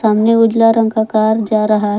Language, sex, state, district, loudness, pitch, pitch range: Hindi, female, Jharkhand, Palamu, -13 LUFS, 220 Hz, 215-225 Hz